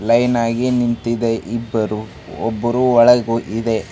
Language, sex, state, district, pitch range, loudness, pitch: Kannada, male, Karnataka, Raichur, 115-120 Hz, -17 LUFS, 115 Hz